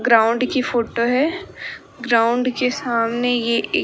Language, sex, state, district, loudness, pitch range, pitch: Hindi, female, Rajasthan, Bikaner, -19 LUFS, 235-255 Hz, 245 Hz